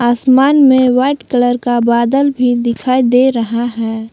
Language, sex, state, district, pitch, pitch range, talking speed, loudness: Hindi, female, Jharkhand, Palamu, 245 Hz, 235-260 Hz, 160 wpm, -12 LUFS